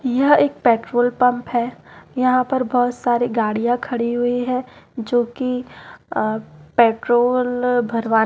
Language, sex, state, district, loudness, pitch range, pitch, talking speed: Hindi, female, Madhya Pradesh, Umaria, -19 LUFS, 235-250 Hz, 245 Hz, 130 wpm